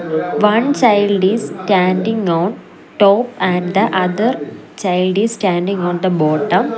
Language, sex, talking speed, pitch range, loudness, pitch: English, female, 135 wpm, 180-210 Hz, -15 LUFS, 190 Hz